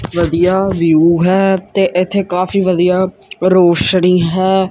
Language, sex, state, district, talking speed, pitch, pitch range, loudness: Punjabi, male, Punjab, Kapurthala, 115 wpm, 185 Hz, 175-190 Hz, -12 LUFS